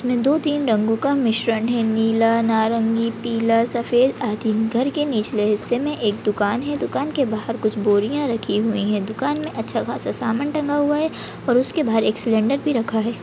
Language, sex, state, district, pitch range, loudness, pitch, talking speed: Hindi, female, Maharashtra, Sindhudurg, 220-270 Hz, -20 LUFS, 230 Hz, 190 wpm